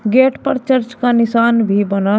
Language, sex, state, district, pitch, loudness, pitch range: Hindi, male, Uttar Pradesh, Shamli, 235 Hz, -14 LUFS, 210-255 Hz